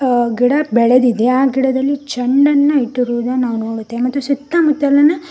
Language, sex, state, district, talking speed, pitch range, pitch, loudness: Kannada, female, Karnataka, Koppal, 90 wpm, 245-285 Hz, 260 Hz, -14 LUFS